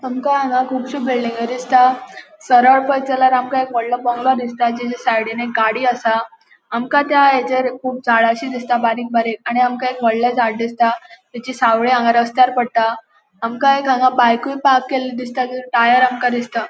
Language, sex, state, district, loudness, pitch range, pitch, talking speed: Konkani, female, Goa, North and South Goa, -16 LUFS, 235-260 Hz, 250 Hz, 170 wpm